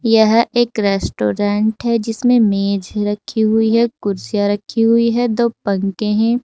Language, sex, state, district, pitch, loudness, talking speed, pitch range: Hindi, female, Uttar Pradesh, Saharanpur, 220 Hz, -16 LUFS, 150 wpm, 205-230 Hz